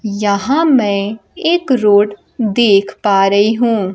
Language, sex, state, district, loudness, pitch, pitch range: Hindi, female, Bihar, Kaimur, -13 LUFS, 210 Hz, 200-240 Hz